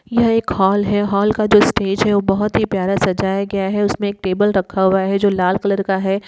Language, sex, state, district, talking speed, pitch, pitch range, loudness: Hindi, female, Uttar Pradesh, Ghazipur, 255 wpm, 200 Hz, 195-205 Hz, -16 LUFS